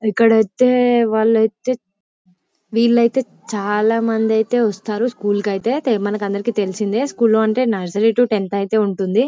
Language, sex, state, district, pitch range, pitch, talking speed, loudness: Telugu, female, Telangana, Karimnagar, 205-235 Hz, 220 Hz, 115 wpm, -17 LUFS